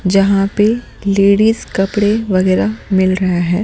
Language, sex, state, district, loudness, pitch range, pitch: Hindi, male, Delhi, New Delhi, -14 LUFS, 185-205 Hz, 195 Hz